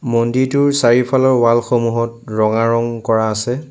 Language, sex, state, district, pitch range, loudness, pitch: Assamese, male, Assam, Sonitpur, 115-130 Hz, -15 LUFS, 120 Hz